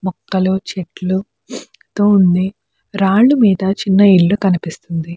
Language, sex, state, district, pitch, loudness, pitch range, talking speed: Telugu, female, Andhra Pradesh, Chittoor, 190 Hz, -14 LUFS, 185-200 Hz, 95 wpm